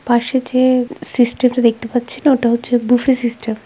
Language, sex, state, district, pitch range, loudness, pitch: Bengali, female, West Bengal, Kolkata, 240-255 Hz, -15 LUFS, 245 Hz